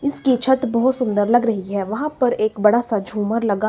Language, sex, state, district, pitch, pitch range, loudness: Hindi, female, Himachal Pradesh, Shimla, 230 Hz, 210-255 Hz, -19 LUFS